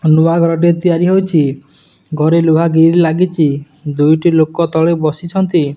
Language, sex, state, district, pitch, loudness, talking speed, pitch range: Odia, male, Odisha, Nuapada, 165 Hz, -12 LUFS, 115 wpm, 155-170 Hz